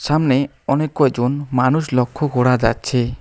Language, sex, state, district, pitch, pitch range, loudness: Bengali, male, West Bengal, Alipurduar, 130 Hz, 125-145 Hz, -18 LUFS